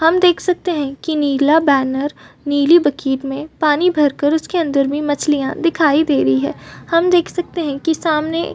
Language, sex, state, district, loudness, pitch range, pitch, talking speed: Hindi, female, Chhattisgarh, Bastar, -16 LUFS, 280-335 Hz, 300 Hz, 195 wpm